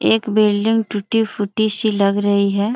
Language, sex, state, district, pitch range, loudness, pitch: Hindi, female, Bihar, Jamui, 205-220 Hz, -17 LUFS, 210 Hz